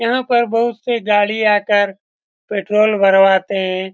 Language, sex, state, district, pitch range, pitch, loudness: Hindi, male, Bihar, Saran, 195-230 Hz, 210 Hz, -15 LUFS